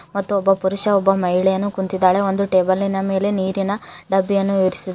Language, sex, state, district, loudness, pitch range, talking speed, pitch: Kannada, female, Karnataka, Koppal, -18 LUFS, 190-200 Hz, 145 wpm, 195 Hz